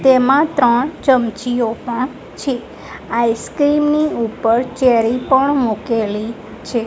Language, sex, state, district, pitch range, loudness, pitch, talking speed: Gujarati, female, Gujarat, Gandhinagar, 230-270 Hz, -16 LUFS, 245 Hz, 105 wpm